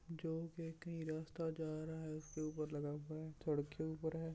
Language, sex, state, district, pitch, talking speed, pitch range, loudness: Hindi, male, Bihar, Purnia, 160 Hz, 220 wpm, 155-165 Hz, -45 LUFS